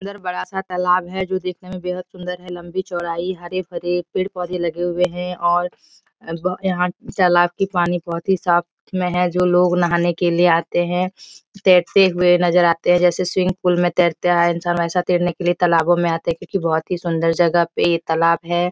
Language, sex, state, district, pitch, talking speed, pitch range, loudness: Hindi, female, Bihar, Jahanabad, 175 Hz, 210 wpm, 175-180 Hz, -19 LUFS